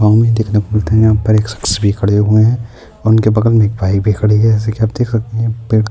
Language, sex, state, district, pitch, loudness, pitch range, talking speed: Urdu, male, Bihar, Saharsa, 110 Hz, -13 LUFS, 105-110 Hz, 235 wpm